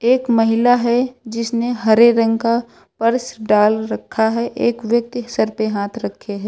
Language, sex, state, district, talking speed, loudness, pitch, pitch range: Hindi, female, Uttar Pradesh, Lucknow, 165 wpm, -17 LUFS, 230 Hz, 220-240 Hz